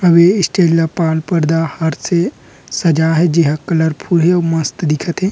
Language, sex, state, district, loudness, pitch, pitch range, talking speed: Chhattisgarhi, male, Chhattisgarh, Rajnandgaon, -14 LUFS, 165 Hz, 160-175 Hz, 180 wpm